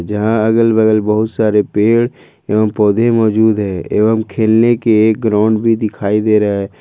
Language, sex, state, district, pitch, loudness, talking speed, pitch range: Hindi, male, Jharkhand, Ranchi, 110 Hz, -13 LUFS, 175 wpm, 105-110 Hz